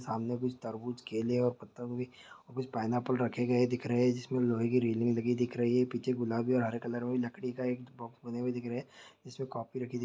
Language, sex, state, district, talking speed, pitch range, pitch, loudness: Hindi, male, Bihar, Saharsa, 245 wpm, 120-125 Hz, 120 Hz, -33 LUFS